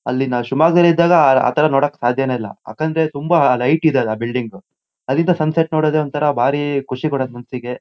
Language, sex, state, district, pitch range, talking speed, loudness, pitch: Kannada, male, Karnataka, Shimoga, 125-155 Hz, 170 wpm, -16 LUFS, 140 Hz